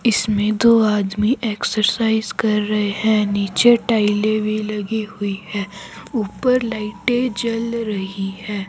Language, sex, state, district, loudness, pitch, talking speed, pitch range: Hindi, male, Himachal Pradesh, Shimla, -19 LUFS, 215 Hz, 125 wpm, 205-230 Hz